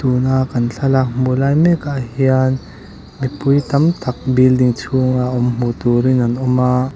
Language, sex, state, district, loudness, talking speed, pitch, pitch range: Mizo, male, Mizoram, Aizawl, -16 LUFS, 145 wpm, 130 Hz, 125-135 Hz